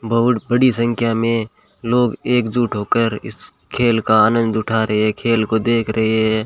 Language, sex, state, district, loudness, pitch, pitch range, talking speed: Hindi, male, Rajasthan, Bikaner, -17 LUFS, 115 Hz, 110-120 Hz, 185 wpm